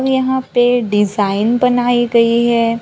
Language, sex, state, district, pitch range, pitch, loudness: Hindi, female, Maharashtra, Gondia, 230-245 Hz, 240 Hz, -14 LUFS